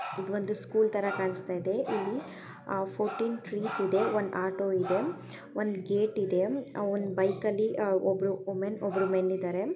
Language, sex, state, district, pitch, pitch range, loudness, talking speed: Kannada, female, Karnataka, Chamarajanagar, 195 Hz, 190-210 Hz, -31 LUFS, 155 wpm